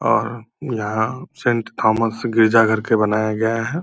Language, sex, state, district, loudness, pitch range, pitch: Hindi, male, Bihar, Purnia, -19 LUFS, 110-120 Hz, 115 Hz